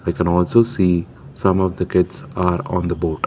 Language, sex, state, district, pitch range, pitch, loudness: English, male, Karnataka, Bangalore, 85-100 Hz, 90 Hz, -19 LUFS